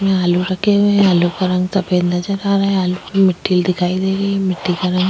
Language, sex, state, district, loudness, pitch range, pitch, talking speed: Hindi, female, Chhattisgarh, Sukma, -16 LUFS, 180-195 Hz, 185 Hz, 270 wpm